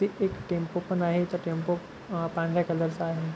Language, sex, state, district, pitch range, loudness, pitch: Marathi, male, Maharashtra, Pune, 165-175 Hz, -29 LUFS, 170 Hz